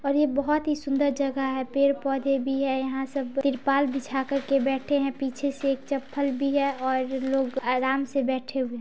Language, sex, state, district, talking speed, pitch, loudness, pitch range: Maithili, female, Bihar, Samastipur, 205 wpm, 275 Hz, -26 LUFS, 265-280 Hz